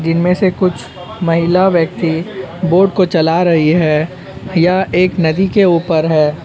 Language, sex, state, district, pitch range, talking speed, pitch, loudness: Hindi, male, Uttar Pradesh, Ghazipur, 160-185 Hz, 150 wpm, 170 Hz, -13 LUFS